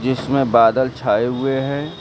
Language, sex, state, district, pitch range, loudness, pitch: Hindi, male, Uttar Pradesh, Lucknow, 125-135 Hz, -17 LUFS, 130 Hz